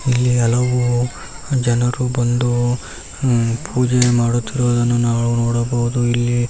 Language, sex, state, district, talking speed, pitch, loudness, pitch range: Kannada, male, Karnataka, Raichur, 85 wpm, 120 Hz, -17 LUFS, 120-125 Hz